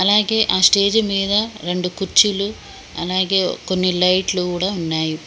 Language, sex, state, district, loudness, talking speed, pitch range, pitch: Telugu, female, Telangana, Mahabubabad, -17 LUFS, 125 wpm, 180-205 Hz, 190 Hz